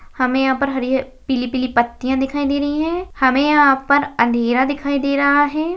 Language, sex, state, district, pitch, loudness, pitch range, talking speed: Hindi, female, Chhattisgarh, Bastar, 275 Hz, -17 LUFS, 260-285 Hz, 200 wpm